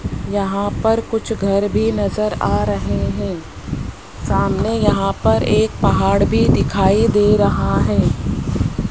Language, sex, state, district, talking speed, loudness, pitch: Hindi, male, Rajasthan, Jaipur, 130 wpm, -17 LUFS, 200 Hz